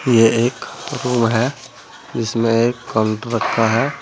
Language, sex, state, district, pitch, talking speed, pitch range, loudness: Hindi, male, Uttar Pradesh, Saharanpur, 115 Hz, 135 wpm, 115-125 Hz, -18 LUFS